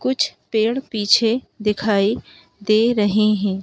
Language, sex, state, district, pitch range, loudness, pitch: Hindi, male, Madhya Pradesh, Bhopal, 210-235 Hz, -19 LUFS, 215 Hz